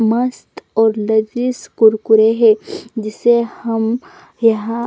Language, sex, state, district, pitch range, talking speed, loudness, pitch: Hindi, female, Chandigarh, Chandigarh, 220-235 Hz, 100 wpm, -15 LUFS, 225 Hz